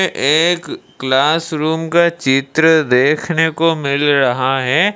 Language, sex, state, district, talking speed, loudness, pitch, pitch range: Hindi, male, Odisha, Malkangiri, 135 wpm, -14 LUFS, 155 Hz, 135-165 Hz